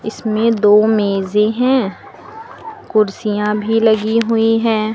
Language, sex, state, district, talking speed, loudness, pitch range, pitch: Hindi, female, Uttar Pradesh, Lucknow, 110 wpm, -15 LUFS, 210-230 Hz, 220 Hz